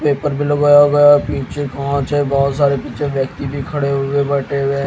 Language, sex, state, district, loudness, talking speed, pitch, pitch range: Hindi, male, Haryana, Jhajjar, -15 LUFS, 195 wpm, 140 Hz, 140-145 Hz